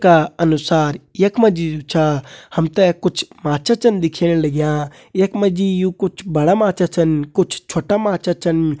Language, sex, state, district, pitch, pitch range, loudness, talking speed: Kumaoni, male, Uttarakhand, Uttarkashi, 170 Hz, 155-190 Hz, -17 LUFS, 175 wpm